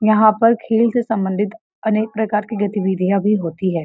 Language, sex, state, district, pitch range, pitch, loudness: Hindi, female, Uttar Pradesh, Varanasi, 195-220 Hz, 210 Hz, -18 LUFS